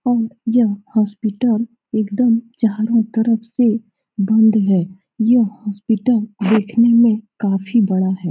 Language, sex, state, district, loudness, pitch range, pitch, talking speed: Hindi, female, Bihar, Saran, -17 LUFS, 210-235 Hz, 220 Hz, 115 wpm